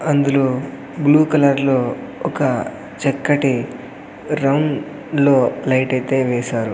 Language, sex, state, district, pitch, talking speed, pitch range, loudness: Telugu, male, Andhra Pradesh, Sri Satya Sai, 135 Hz, 90 wpm, 130-145 Hz, -18 LUFS